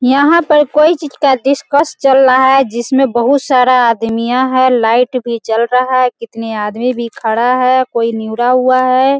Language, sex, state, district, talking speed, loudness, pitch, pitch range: Hindi, female, Bihar, Sitamarhi, 185 wpm, -12 LUFS, 255 Hz, 235-270 Hz